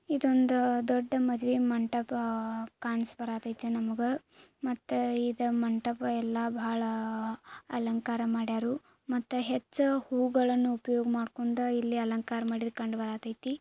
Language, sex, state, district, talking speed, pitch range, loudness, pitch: Kannada, female, Karnataka, Belgaum, 105 wpm, 230-250 Hz, -31 LUFS, 240 Hz